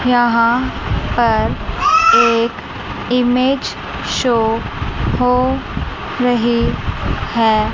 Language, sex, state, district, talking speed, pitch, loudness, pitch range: Hindi, female, Chandigarh, Chandigarh, 60 wpm, 245 Hz, -16 LUFS, 230-255 Hz